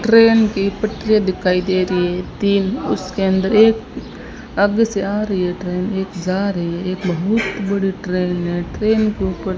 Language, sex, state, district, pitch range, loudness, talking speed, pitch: Hindi, female, Rajasthan, Bikaner, 185-210 Hz, -18 LUFS, 180 wpm, 195 Hz